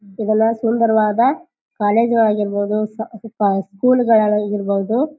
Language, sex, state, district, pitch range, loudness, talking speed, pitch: Kannada, female, Karnataka, Bijapur, 205-230 Hz, -17 LUFS, 125 wpm, 215 Hz